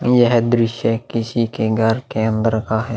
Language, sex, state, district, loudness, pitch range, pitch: Hindi, male, Uttar Pradesh, Muzaffarnagar, -18 LUFS, 110-120 Hz, 115 Hz